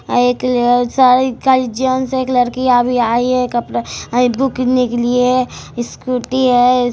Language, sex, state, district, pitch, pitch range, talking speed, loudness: Hindi, female, Bihar, Araria, 250 Hz, 245-255 Hz, 130 wpm, -15 LUFS